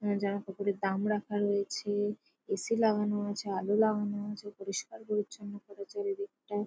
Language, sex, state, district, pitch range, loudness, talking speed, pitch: Bengali, female, West Bengal, Jalpaiguri, 200-210 Hz, -33 LUFS, 145 wpm, 205 Hz